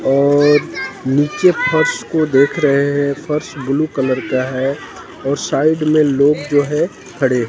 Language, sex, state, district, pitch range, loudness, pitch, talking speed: Hindi, male, Haryana, Jhajjar, 135-155 Hz, -16 LUFS, 145 Hz, 150 wpm